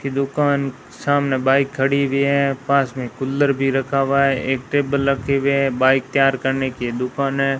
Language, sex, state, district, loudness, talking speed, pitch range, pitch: Hindi, female, Rajasthan, Bikaner, -19 LUFS, 195 wpm, 135-140 Hz, 135 Hz